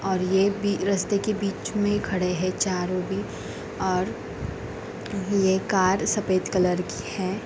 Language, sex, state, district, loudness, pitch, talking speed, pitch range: Hindi, female, Uttar Pradesh, Varanasi, -25 LUFS, 190 Hz, 145 wpm, 185-205 Hz